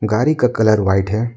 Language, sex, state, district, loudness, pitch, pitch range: Hindi, male, Arunachal Pradesh, Lower Dibang Valley, -16 LUFS, 110 Hz, 105-120 Hz